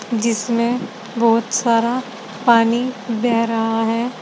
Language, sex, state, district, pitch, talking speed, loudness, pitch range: Hindi, female, Uttar Pradesh, Saharanpur, 230 Hz, 100 wpm, -18 LUFS, 225-240 Hz